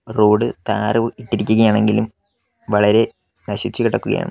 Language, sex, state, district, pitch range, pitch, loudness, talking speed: Malayalam, male, Kerala, Kollam, 105-115 Hz, 110 Hz, -17 LUFS, 85 wpm